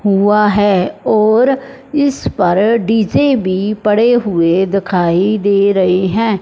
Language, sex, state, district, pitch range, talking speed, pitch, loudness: Hindi, male, Punjab, Fazilka, 190-225 Hz, 120 wpm, 205 Hz, -13 LUFS